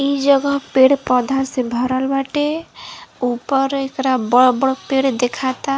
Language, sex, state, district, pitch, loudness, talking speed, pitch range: Bhojpuri, female, Uttar Pradesh, Varanasi, 270 Hz, -17 LUFS, 135 wpm, 255-275 Hz